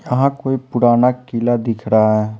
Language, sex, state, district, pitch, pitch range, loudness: Hindi, male, Bihar, Patna, 120 Hz, 110-130 Hz, -16 LUFS